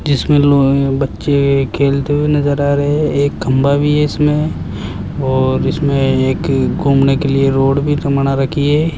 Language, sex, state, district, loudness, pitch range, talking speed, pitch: Hindi, male, Rajasthan, Jaipur, -14 LUFS, 135-145 Hz, 165 wpm, 140 Hz